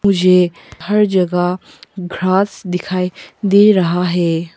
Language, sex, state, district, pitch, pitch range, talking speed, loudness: Hindi, female, Arunachal Pradesh, Papum Pare, 180 Hz, 175-195 Hz, 105 wpm, -15 LUFS